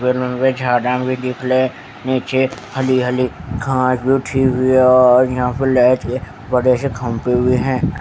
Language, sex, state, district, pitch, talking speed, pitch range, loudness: Hindi, male, Haryana, Charkhi Dadri, 125 Hz, 35 wpm, 125-130 Hz, -16 LUFS